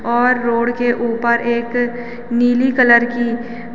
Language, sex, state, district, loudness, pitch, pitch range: Hindi, female, Uttarakhand, Tehri Garhwal, -16 LUFS, 240 Hz, 235-245 Hz